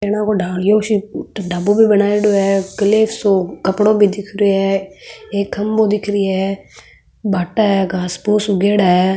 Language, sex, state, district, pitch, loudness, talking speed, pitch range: Marwari, female, Rajasthan, Nagaur, 200 Hz, -16 LUFS, 145 wpm, 195-210 Hz